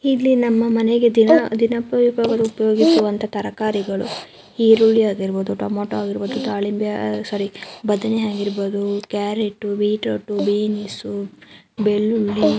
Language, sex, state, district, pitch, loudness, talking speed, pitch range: Kannada, female, Karnataka, Mysore, 210 Hz, -19 LUFS, 90 wpm, 200-225 Hz